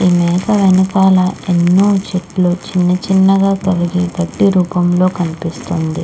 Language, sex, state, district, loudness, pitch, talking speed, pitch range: Telugu, female, Andhra Pradesh, Krishna, -13 LUFS, 180 Hz, 130 wpm, 175-190 Hz